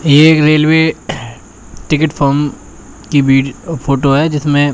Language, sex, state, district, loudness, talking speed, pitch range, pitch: Hindi, male, Uttar Pradesh, Shamli, -12 LUFS, 125 wpm, 140-155 Hz, 145 Hz